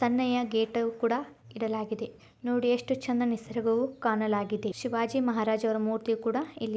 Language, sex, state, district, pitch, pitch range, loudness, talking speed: Kannada, female, Karnataka, Belgaum, 230 Hz, 220-245 Hz, -30 LUFS, 115 wpm